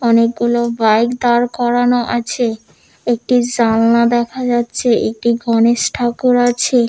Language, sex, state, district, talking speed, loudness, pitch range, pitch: Bengali, female, West Bengal, Malda, 115 wpm, -15 LUFS, 235-245 Hz, 240 Hz